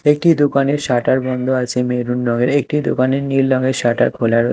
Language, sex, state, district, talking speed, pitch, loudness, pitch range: Bengali, male, Odisha, Malkangiri, 185 wpm, 130 Hz, -16 LUFS, 125-140 Hz